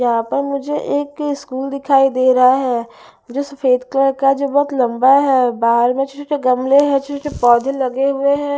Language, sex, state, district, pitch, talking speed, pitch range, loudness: Hindi, female, Bihar, West Champaran, 270 Hz, 205 wpm, 255-280 Hz, -16 LUFS